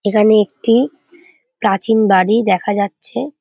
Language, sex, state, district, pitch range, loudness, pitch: Bengali, female, West Bengal, Jhargram, 200-285 Hz, -15 LUFS, 220 Hz